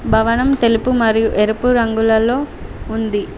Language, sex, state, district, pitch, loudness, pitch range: Telugu, female, Telangana, Mahabubabad, 225 Hz, -15 LUFS, 220-245 Hz